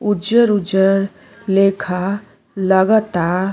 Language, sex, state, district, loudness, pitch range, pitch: Bhojpuri, female, Uttar Pradesh, Deoria, -16 LUFS, 190-205 Hz, 195 Hz